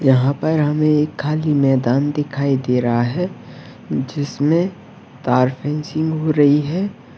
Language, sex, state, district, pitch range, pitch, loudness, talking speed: Hindi, male, Uttarakhand, Uttarkashi, 130-155 Hz, 145 Hz, -18 LUFS, 135 wpm